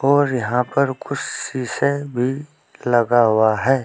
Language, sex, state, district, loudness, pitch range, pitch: Hindi, male, Uttar Pradesh, Saharanpur, -19 LUFS, 120-140 Hz, 130 Hz